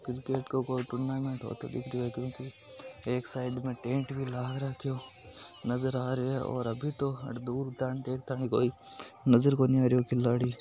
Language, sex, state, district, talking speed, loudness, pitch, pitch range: Hindi, male, Rajasthan, Nagaur, 185 wpm, -32 LUFS, 130 Hz, 125-130 Hz